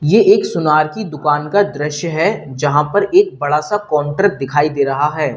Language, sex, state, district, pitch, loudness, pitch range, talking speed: Hindi, male, Uttar Pradesh, Lalitpur, 150 Hz, -15 LUFS, 150-205 Hz, 200 wpm